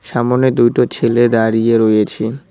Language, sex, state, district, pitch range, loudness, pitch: Bengali, male, West Bengal, Alipurduar, 110-120 Hz, -13 LUFS, 115 Hz